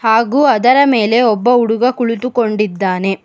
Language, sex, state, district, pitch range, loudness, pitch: Kannada, female, Karnataka, Bangalore, 210-245 Hz, -13 LUFS, 230 Hz